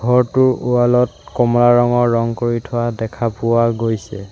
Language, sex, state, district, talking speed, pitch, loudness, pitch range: Assamese, male, Assam, Sonitpur, 155 wpm, 120 Hz, -16 LUFS, 115-120 Hz